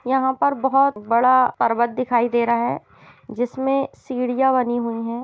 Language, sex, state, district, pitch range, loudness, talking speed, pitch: Hindi, female, Bihar, East Champaran, 235-265 Hz, -20 LUFS, 160 wpm, 250 Hz